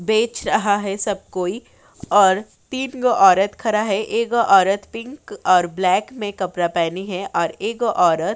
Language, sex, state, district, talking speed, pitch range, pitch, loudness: Hindi, female, Uttar Pradesh, Jyotiba Phule Nagar, 170 wpm, 185-230 Hz, 205 Hz, -19 LUFS